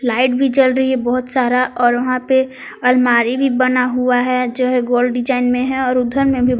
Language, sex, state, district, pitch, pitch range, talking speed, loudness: Hindi, female, Jharkhand, Palamu, 250 Hz, 245-260 Hz, 225 wpm, -15 LUFS